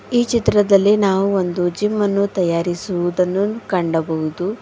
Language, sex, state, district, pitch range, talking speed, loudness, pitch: Kannada, female, Karnataka, Bidar, 175-205 Hz, 105 wpm, -18 LUFS, 195 Hz